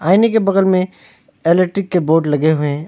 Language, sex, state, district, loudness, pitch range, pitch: Hindi, male, West Bengal, Alipurduar, -15 LUFS, 155-195 Hz, 180 Hz